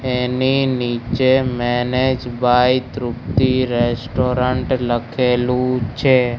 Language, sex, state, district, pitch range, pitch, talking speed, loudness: Gujarati, male, Gujarat, Gandhinagar, 120-130 Hz, 125 Hz, 75 wpm, -18 LUFS